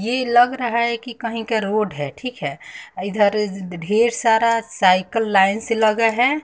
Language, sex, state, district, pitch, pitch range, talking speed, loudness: Hindi, female, Bihar, West Champaran, 225 Hz, 200-235 Hz, 175 wpm, -19 LUFS